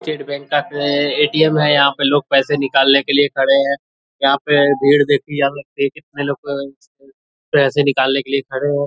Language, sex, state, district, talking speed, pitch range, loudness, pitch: Hindi, male, Bihar, Purnia, 195 wpm, 140-145 Hz, -16 LUFS, 140 Hz